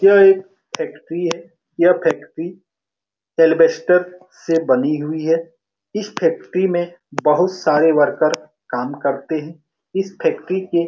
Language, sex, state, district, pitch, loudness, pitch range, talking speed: Hindi, male, Bihar, Saran, 170 Hz, -18 LUFS, 155-185 Hz, 130 wpm